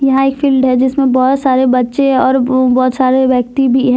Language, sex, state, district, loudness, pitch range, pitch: Hindi, female, Jharkhand, Deoghar, -12 LUFS, 255-270 Hz, 260 Hz